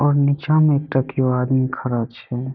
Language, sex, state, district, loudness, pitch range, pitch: Maithili, male, Bihar, Saharsa, -19 LUFS, 125-145 Hz, 130 Hz